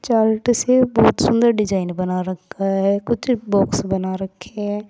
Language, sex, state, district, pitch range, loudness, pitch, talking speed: Hindi, female, Uttar Pradesh, Saharanpur, 190-230 Hz, -19 LUFS, 205 Hz, 135 wpm